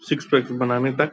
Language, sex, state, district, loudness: Hindi, male, Bihar, Purnia, -21 LUFS